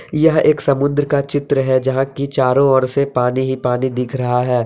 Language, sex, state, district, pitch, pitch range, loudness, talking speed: Hindi, male, Jharkhand, Deoghar, 135 Hz, 130-140 Hz, -16 LUFS, 220 wpm